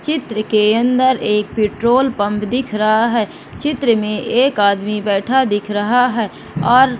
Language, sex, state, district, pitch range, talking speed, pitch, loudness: Hindi, female, Madhya Pradesh, Katni, 210-250 Hz, 155 wpm, 225 Hz, -16 LUFS